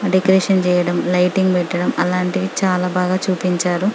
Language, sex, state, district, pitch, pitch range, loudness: Telugu, female, Telangana, Karimnagar, 180 Hz, 180-190 Hz, -17 LUFS